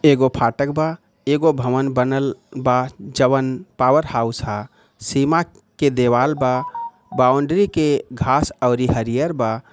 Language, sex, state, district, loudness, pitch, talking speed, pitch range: Bhojpuri, male, Bihar, Gopalganj, -19 LUFS, 135 Hz, 135 wpm, 125-150 Hz